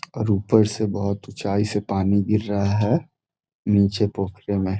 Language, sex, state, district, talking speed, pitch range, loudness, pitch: Hindi, male, Bihar, Gopalganj, 160 wpm, 100-110 Hz, -22 LUFS, 105 Hz